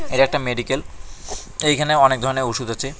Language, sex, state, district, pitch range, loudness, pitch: Bengali, male, West Bengal, Cooch Behar, 125-145 Hz, -19 LUFS, 135 Hz